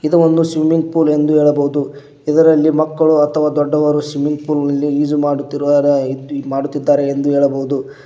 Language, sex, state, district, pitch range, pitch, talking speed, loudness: Kannada, male, Karnataka, Koppal, 140-155 Hz, 145 Hz, 135 wpm, -15 LUFS